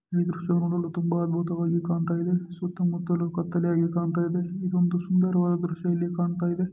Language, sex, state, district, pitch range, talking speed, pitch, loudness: Kannada, male, Karnataka, Dharwad, 170-175 Hz, 150 wpm, 175 Hz, -26 LUFS